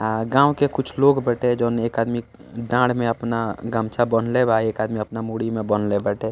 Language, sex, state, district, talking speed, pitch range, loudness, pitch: Bhojpuri, male, Bihar, East Champaran, 210 wpm, 110-120 Hz, -21 LUFS, 115 Hz